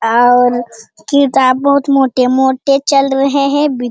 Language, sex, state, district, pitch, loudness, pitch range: Hindi, female, Bihar, Jamui, 265 Hz, -12 LUFS, 245-275 Hz